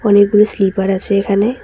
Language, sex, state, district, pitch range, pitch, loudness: Bengali, female, West Bengal, Cooch Behar, 195-210 Hz, 200 Hz, -13 LUFS